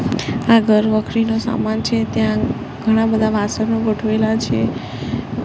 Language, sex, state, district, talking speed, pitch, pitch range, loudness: Gujarati, female, Gujarat, Gandhinagar, 120 wpm, 220 Hz, 205-225 Hz, -18 LUFS